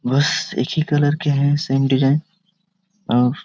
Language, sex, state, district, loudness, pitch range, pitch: Hindi, male, Jharkhand, Sahebganj, -18 LUFS, 135-180 Hz, 145 Hz